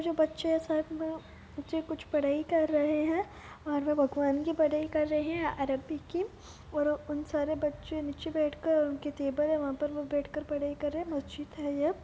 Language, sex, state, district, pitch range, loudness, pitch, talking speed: Hindi, female, Bihar, Purnia, 290-315 Hz, -32 LUFS, 300 Hz, 210 wpm